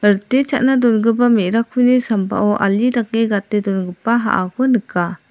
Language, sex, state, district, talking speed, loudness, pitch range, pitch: Garo, female, Meghalaya, South Garo Hills, 125 wpm, -16 LUFS, 200-245 Hz, 225 Hz